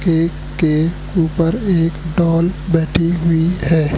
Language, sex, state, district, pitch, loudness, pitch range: Hindi, male, Madhya Pradesh, Katni, 165 Hz, -16 LUFS, 160-170 Hz